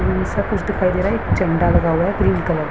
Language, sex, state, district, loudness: Hindi, female, Uttarakhand, Uttarkashi, -18 LUFS